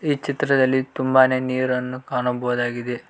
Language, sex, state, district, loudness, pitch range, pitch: Kannada, male, Karnataka, Koppal, -21 LUFS, 125-130 Hz, 130 Hz